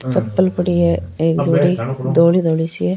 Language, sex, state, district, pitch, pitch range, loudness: Rajasthani, female, Rajasthan, Churu, 165 Hz, 135-175 Hz, -16 LUFS